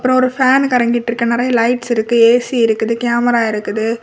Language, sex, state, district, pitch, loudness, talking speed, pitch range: Tamil, female, Tamil Nadu, Kanyakumari, 235 Hz, -14 LUFS, 165 wpm, 230-245 Hz